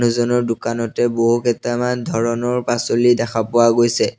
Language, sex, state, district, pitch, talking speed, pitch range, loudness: Assamese, male, Assam, Sonitpur, 120 Hz, 100 wpm, 115-120 Hz, -18 LUFS